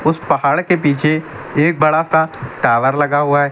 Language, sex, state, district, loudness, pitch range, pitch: Hindi, male, Uttar Pradesh, Lucknow, -15 LUFS, 140-160 Hz, 150 Hz